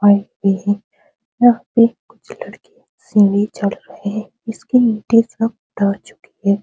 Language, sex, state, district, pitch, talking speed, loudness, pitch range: Hindi, female, Bihar, Supaul, 215 Hz, 155 wpm, -17 LUFS, 200-230 Hz